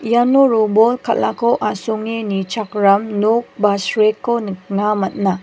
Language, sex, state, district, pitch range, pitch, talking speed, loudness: Garo, female, Meghalaya, West Garo Hills, 200-230 Hz, 215 Hz, 110 wpm, -16 LUFS